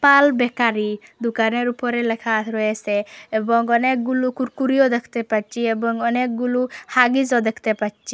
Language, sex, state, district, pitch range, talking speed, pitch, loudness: Bengali, female, Assam, Hailakandi, 225-250 Hz, 120 wpm, 235 Hz, -20 LUFS